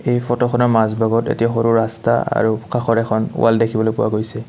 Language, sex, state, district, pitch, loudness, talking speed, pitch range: Assamese, male, Assam, Kamrup Metropolitan, 115 Hz, -17 LUFS, 185 wpm, 110-120 Hz